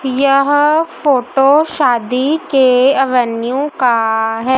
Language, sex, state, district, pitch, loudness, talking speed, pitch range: Hindi, female, Madhya Pradesh, Dhar, 265 Hz, -13 LUFS, 90 wpm, 250-285 Hz